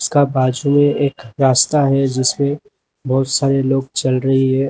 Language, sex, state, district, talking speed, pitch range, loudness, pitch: Hindi, male, Uttar Pradesh, Lalitpur, 165 wpm, 130-145 Hz, -16 LUFS, 135 Hz